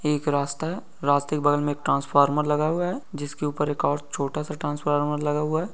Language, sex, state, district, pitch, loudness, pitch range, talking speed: Hindi, male, Bihar, Jamui, 150 Hz, -25 LUFS, 145-150 Hz, 250 wpm